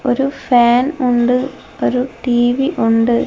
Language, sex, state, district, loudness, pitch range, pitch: Malayalam, female, Kerala, Kozhikode, -15 LUFS, 240-260 Hz, 250 Hz